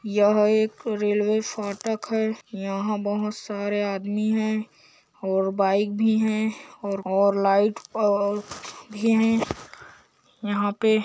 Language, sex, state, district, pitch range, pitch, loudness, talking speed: Hindi, male, Chhattisgarh, Korba, 200-220 Hz, 210 Hz, -24 LUFS, 120 wpm